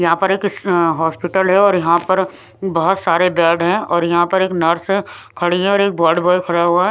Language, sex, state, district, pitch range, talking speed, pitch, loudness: Hindi, female, Punjab, Pathankot, 170-190 Hz, 245 wpm, 175 Hz, -15 LUFS